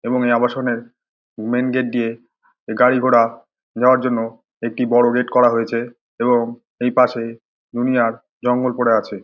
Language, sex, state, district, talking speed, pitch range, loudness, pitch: Bengali, male, West Bengal, Dakshin Dinajpur, 145 wpm, 115-125 Hz, -18 LUFS, 120 Hz